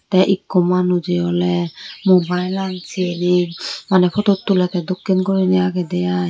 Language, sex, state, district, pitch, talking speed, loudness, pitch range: Chakma, female, Tripura, West Tripura, 180 Hz, 125 wpm, -18 LUFS, 175-185 Hz